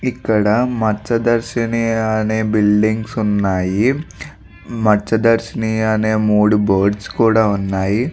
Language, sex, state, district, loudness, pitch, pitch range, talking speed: Telugu, male, Andhra Pradesh, Visakhapatnam, -16 LUFS, 110 Hz, 105-115 Hz, 80 wpm